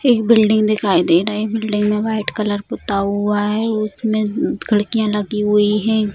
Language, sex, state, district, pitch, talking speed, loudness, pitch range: Hindi, female, Bihar, Sitamarhi, 210 Hz, 175 wpm, -17 LUFS, 210-220 Hz